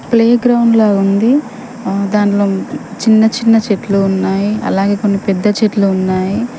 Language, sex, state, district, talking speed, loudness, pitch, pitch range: Telugu, female, Telangana, Mahabubabad, 135 wpm, -13 LUFS, 210 Hz, 195-230 Hz